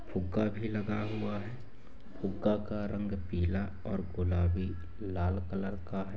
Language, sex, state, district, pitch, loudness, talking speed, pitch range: Hindi, male, Jharkhand, Jamtara, 100 Hz, -35 LUFS, 145 wpm, 90-105 Hz